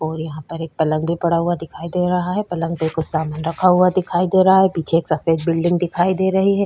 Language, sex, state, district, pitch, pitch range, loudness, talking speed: Hindi, female, Chhattisgarh, Korba, 170 Hz, 160-180 Hz, -18 LUFS, 260 wpm